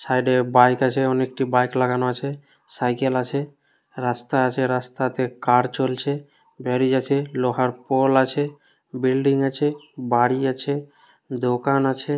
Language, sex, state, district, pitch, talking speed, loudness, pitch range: Bengali, male, West Bengal, Dakshin Dinajpur, 130 Hz, 125 wpm, -22 LUFS, 125-140 Hz